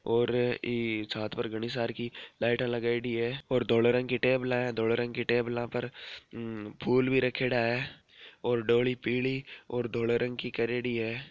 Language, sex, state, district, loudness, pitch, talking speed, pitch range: Marwari, male, Rajasthan, Nagaur, -30 LUFS, 120 Hz, 175 wpm, 115-125 Hz